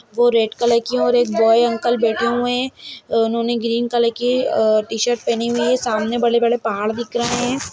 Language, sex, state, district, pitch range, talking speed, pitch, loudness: Hindi, female, Chhattisgarh, Sarguja, 230-240 Hz, 215 wpm, 235 Hz, -18 LUFS